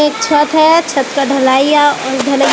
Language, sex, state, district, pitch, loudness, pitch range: Hindi, female, Bihar, Katihar, 285 Hz, -11 LUFS, 275-300 Hz